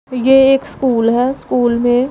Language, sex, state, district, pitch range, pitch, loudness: Hindi, female, Punjab, Pathankot, 245-270 Hz, 255 Hz, -13 LUFS